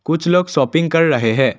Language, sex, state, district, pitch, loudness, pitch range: Hindi, male, Assam, Kamrup Metropolitan, 160 Hz, -15 LUFS, 135-165 Hz